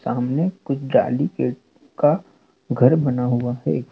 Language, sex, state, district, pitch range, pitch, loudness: Hindi, male, Madhya Pradesh, Dhar, 125-140 Hz, 125 Hz, -21 LUFS